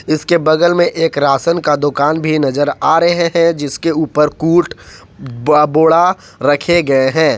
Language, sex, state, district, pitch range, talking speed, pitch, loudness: Hindi, male, Jharkhand, Ranchi, 145-170 Hz, 160 wpm, 155 Hz, -13 LUFS